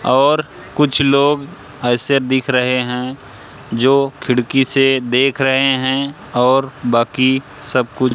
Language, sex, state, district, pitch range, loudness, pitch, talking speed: Hindi, male, Madhya Pradesh, Katni, 125-140 Hz, -15 LUFS, 130 Hz, 125 wpm